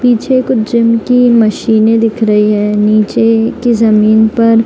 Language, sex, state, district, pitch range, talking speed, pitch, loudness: Hindi, female, Bihar, Gaya, 215-235 Hz, 155 wpm, 225 Hz, -10 LUFS